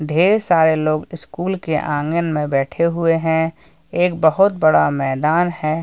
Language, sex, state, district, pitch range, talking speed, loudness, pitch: Hindi, male, Uttar Pradesh, Jalaun, 155-170 Hz, 165 wpm, -17 LUFS, 160 Hz